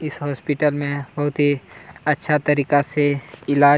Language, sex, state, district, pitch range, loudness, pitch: Hindi, male, Chhattisgarh, Kabirdham, 145-150 Hz, -21 LUFS, 145 Hz